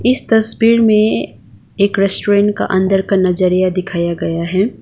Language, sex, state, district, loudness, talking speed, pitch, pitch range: Hindi, female, Sikkim, Gangtok, -14 LUFS, 150 wpm, 195 Hz, 185-215 Hz